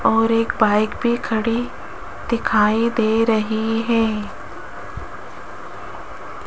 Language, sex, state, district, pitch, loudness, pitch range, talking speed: Hindi, female, Rajasthan, Jaipur, 225 Hz, -19 LUFS, 220-230 Hz, 85 wpm